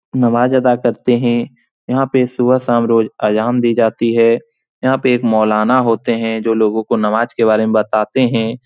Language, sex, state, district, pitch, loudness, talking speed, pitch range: Hindi, male, Bihar, Supaul, 115 Hz, -14 LUFS, 195 wpm, 110-125 Hz